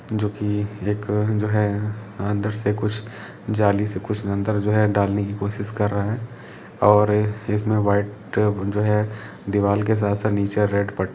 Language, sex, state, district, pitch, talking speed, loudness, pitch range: Hindi, male, Jharkhand, Jamtara, 105 Hz, 160 wpm, -22 LUFS, 100-105 Hz